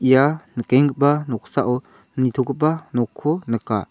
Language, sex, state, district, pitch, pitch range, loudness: Garo, male, Meghalaya, South Garo Hills, 135 Hz, 125-150 Hz, -20 LUFS